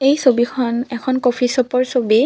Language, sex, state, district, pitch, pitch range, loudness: Assamese, female, Assam, Kamrup Metropolitan, 250 Hz, 240-255 Hz, -17 LUFS